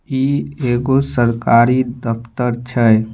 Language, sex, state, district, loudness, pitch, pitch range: Maithili, male, Bihar, Samastipur, -16 LUFS, 120 Hz, 115-130 Hz